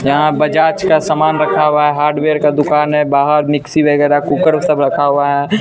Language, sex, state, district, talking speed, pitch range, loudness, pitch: Hindi, male, Bihar, Katihar, 205 wpm, 145-155 Hz, -12 LUFS, 150 Hz